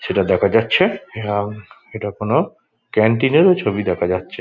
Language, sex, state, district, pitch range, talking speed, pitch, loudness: Bengali, male, West Bengal, Dakshin Dinajpur, 105-120 Hz, 150 wpm, 105 Hz, -18 LUFS